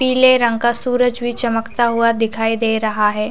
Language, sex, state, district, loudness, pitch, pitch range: Hindi, female, Chhattisgarh, Raigarh, -16 LUFS, 230 Hz, 225-245 Hz